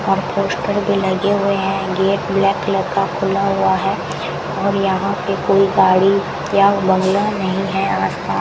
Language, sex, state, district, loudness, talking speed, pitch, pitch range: Hindi, female, Rajasthan, Bikaner, -17 LUFS, 165 wpm, 195 Hz, 190-200 Hz